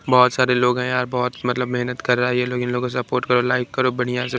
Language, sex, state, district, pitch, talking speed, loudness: Hindi, male, Bihar, Kaimur, 125 Hz, 300 wpm, -20 LUFS